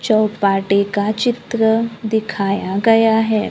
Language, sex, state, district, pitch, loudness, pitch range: Hindi, female, Maharashtra, Gondia, 215 Hz, -17 LUFS, 200-225 Hz